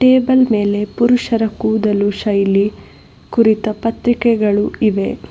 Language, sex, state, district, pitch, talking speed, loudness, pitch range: Kannada, female, Karnataka, Bangalore, 220 Hz, 90 wpm, -15 LUFS, 205-235 Hz